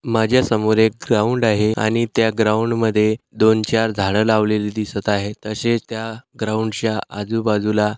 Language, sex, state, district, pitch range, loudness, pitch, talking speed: Marathi, male, Maharashtra, Sindhudurg, 105-115 Hz, -19 LUFS, 110 Hz, 130 wpm